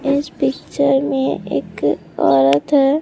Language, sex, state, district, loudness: Hindi, female, Bihar, Katihar, -17 LUFS